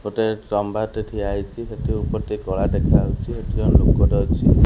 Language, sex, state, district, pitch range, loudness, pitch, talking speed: Odia, male, Odisha, Khordha, 100-110 Hz, -21 LUFS, 105 Hz, 180 wpm